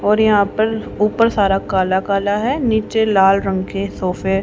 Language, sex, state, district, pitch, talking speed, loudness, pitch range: Hindi, female, Haryana, Rohtak, 200 Hz, 190 wpm, -16 LUFS, 195-220 Hz